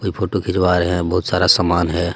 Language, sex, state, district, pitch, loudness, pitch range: Hindi, male, Jharkhand, Deoghar, 90 Hz, -17 LUFS, 85-95 Hz